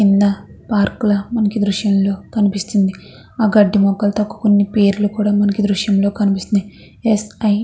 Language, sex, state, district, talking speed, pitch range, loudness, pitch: Telugu, female, Andhra Pradesh, Chittoor, 150 wpm, 200-210 Hz, -16 LUFS, 205 Hz